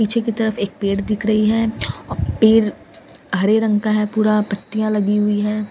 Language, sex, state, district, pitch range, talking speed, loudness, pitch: Hindi, female, Bihar, Katihar, 210-220 Hz, 200 wpm, -18 LUFS, 215 Hz